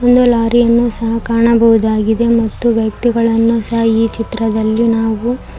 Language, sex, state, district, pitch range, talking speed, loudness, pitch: Kannada, female, Karnataka, Koppal, 225-235 Hz, 120 wpm, -13 LUFS, 230 Hz